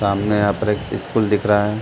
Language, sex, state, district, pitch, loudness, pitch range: Hindi, male, Chhattisgarh, Bastar, 105 Hz, -19 LUFS, 100-105 Hz